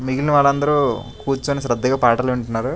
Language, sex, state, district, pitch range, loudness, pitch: Telugu, male, Andhra Pradesh, Chittoor, 125-140 Hz, -18 LUFS, 130 Hz